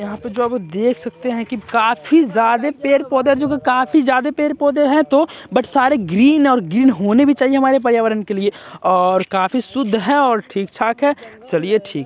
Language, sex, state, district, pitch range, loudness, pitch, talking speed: Hindi, male, Bihar, Jamui, 220-280 Hz, -16 LUFS, 250 Hz, 215 wpm